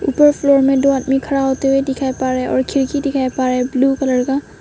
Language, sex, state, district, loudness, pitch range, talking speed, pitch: Hindi, female, Arunachal Pradesh, Papum Pare, -16 LUFS, 260-275 Hz, 235 wpm, 270 Hz